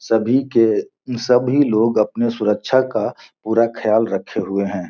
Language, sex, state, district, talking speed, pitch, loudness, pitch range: Hindi, male, Bihar, Gopalganj, 145 wpm, 115 Hz, -18 LUFS, 110-125 Hz